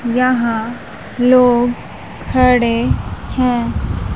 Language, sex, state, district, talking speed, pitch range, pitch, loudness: Hindi, female, Madhya Pradesh, Umaria, 60 wpm, 235-250 Hz, 245 Hz, -15 LUFS